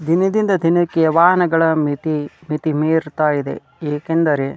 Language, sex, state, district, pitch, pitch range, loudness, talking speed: Kannada, male, Karnataka, Dharwad, 160 Hz, 150-170 Hz, -17 LUFS, 105 wpm